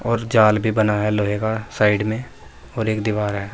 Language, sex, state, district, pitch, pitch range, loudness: Hindi, male, Uttar Pradesh, Saharanpur, 110 Hz, 105-110 Hz, -20 LUFS